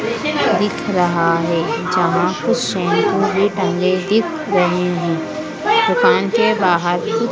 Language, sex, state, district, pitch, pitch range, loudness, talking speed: Hindi, female, Madhya Pradesh, Dhar, 185 Hz, 175-205 Hz, -17 LUFS, 115 wpm